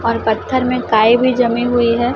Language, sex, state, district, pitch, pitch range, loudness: Hindi, female, Chhattisgarh, Raipur, 240 Hz, 230-250 Hz, -14 LUFS